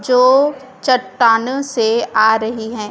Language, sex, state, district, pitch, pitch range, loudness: Hindi, female, Chhattisgarh, Raipur, 240 Hz, 220-260 Hz, -15 LUFS